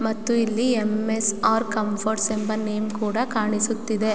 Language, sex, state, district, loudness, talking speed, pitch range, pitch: Kannada, female, Karnataka, Mysore, -23 LUFS, 130 wpm, 215-225 Hz, 220 Hz